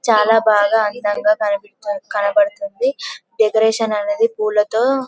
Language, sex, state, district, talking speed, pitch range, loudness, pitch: Telugu, female, Telangana, Karimnagar, 95 wpm, 210-235 Hz, -17 LUFS, 220 Hz